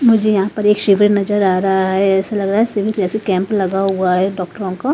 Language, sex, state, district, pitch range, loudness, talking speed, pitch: Hindi, female, Haryana, Rohtak, 190-210 Hz, -15 LUFS, 255 wpm, 195 Hz